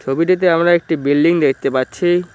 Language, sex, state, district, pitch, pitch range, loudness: Bengali, male, West Bengal, Cooch Behar, 165 Hz, 140-175 Hz, -15 LUFS